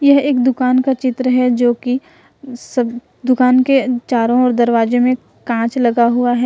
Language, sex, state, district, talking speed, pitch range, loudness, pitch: Hindi, female, Jharkhand, Ranchi, 160 wpm, 240-255 Hz, -15 LUFS, 250 Hz